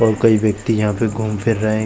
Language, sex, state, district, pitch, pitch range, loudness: Hindi, male, Chhattisgarh, Bilaspur, 110 Hz, 105-115 Hz, -17 LUFS